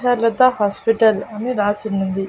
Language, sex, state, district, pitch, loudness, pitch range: Telugu, female, Andhra Pradesh, Annamaya, 215 Hz, -18 LUFS, 200-230 Hz